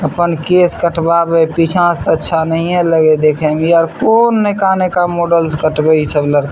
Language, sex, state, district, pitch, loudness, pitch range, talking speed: Maithili, male, Bihar, Samastipur, 165 Hz, -12 LUFS, 155-175 Hz, 240 wpm